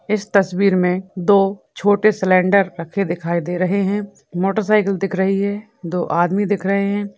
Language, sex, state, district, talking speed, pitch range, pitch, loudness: Hindi, female, Rajasthan, Churu, 165 wpm, 185-205 Hz, 195 Hz, -18 LUFS